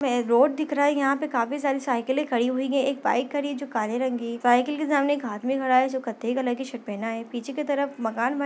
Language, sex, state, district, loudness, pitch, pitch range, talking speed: Hindi, female, Chhattisgarh, Bastar, -25 LUFS, 260 Hz, 240-280 Hz, 300 wpm